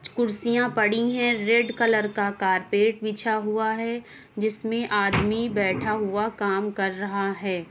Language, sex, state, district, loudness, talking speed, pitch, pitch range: Hindi, female, Uttar Pradesh, Muzaffarnagar, -24 LUFS, 140 wpm, 215 Hz, 205-230 Hz